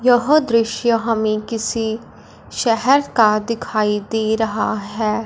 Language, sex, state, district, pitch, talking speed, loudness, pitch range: Hindi, female, Punjab, Fazilka, 225 Hz, 115 wpm, -18 LUFS, 215-235 Hz